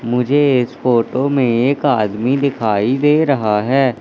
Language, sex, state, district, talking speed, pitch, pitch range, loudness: Hindi, male, Madhya Pradesh, Katni, 150 wpm, 130 Hz, 115-140 Hz, -15 LUFS